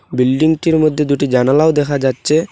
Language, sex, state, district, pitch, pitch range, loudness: Bengali, male, Assam, Hailakandi, 150 Hz, 135-160 Hz, -14 LUFS